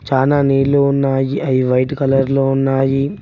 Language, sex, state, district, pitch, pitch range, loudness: Telugu, male, Telangana, Mahabubabad, 135 Hz, 135-140 Hz, -15 LUFS